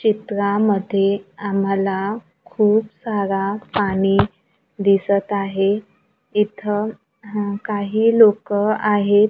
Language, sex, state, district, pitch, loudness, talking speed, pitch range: Marathi, female, Maharashtra, Gondia, 205 Hz, -19 LUFS, 75 wpm, 195-210 Hz